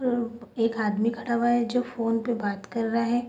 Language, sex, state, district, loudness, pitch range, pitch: Hindi, female, Bihar, Sitamarhi, -27 LUFS, 225-240 Hz, 230 Hz